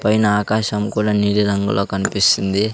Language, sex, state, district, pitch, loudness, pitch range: Telugu, male, Andhra Pradesh, Sri Satya Sai, 105 Hz, -17 LUFS, 100-105 Hz